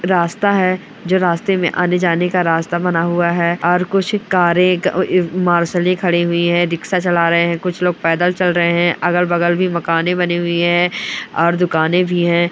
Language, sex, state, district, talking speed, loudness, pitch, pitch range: Hindi, male, Bihar, Bhagalpur, 185 wpm, -15 LUFS, 175 Hz, 170-180 Hz